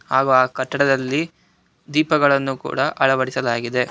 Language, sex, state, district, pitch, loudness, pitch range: Kannada, male, Karnataka, Bangalore, 135 Hz, -19 LUFS, 130-140 Hz